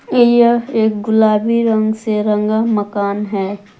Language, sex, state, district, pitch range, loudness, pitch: Hindi, female, Jharkhand, Palamu, 210-225 Hz, -15 LUFS, 215 Hz